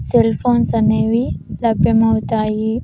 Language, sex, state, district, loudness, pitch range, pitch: Telugu, female, Andhra Pradesh, Sri Satya Sai, -16 LUFS, 220-235 Hz, 225 Hz